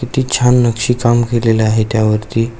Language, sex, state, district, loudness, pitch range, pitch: Marathi, male, Maharashtra, Aurangabad, -14 LUFS, 110-125 Hz, 120 Hz